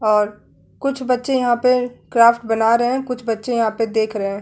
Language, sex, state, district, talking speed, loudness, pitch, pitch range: Hindi, female, Uttar Pradesh, Jalaun, 215 wpm, -18 LUFS, 235 Hz, 220-250 Hz